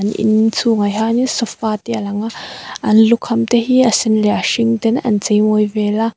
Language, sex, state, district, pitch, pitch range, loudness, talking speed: Mizo, female, Mizoram, Aizawl, 220 Hz, 210-230 Hz, -15 LUFS, 215 wpm